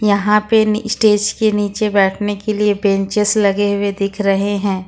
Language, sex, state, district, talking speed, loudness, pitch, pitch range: Hindi, female, Jharkhand, Ranchi, 170 wpm, -15 LUFS, 205 Hz, 200-210 Hz